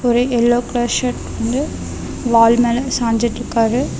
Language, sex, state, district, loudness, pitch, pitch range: Tamil, female, Tamil Nadu, Namakkal, -17 LUFS, 240 Hz, 235-245 Hz